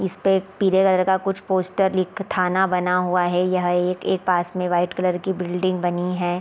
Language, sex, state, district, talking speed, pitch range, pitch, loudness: Hindi, female, Chhattisgarh, Raigarh, 215 wpm, 180-190 Hz, 185 Hz, -21 LUFS